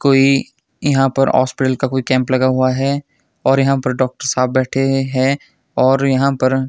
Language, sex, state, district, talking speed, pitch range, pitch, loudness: Hindi, male, Himachal Pradesh, Shimla, 180 wpm, 130-135 Hz, 130 Hz, -16 LUFS